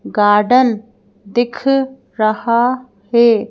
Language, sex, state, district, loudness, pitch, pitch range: Hindi, female, Madhya Pradesh, Bhopal, -15 LUFS, 235 Hz, 210-250 Hz